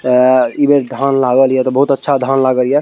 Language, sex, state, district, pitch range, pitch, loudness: Maithili, male, Bihar, Araria, 130-140 Hz, 135 Hz, -12 LUFS